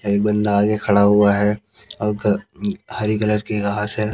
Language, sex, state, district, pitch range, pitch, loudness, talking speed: Hindi, male, Haryana, Jhajjar, 100-105 Hz, 105 Hz, -19 LUFS, 190 wpm